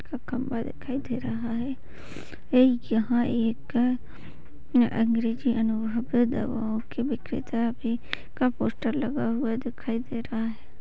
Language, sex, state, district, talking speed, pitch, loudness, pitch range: Hindi, female, Chhattisgarh, Raigarh, 135 wpm, 235 Hz, -27 LUFS, 230-250 Hz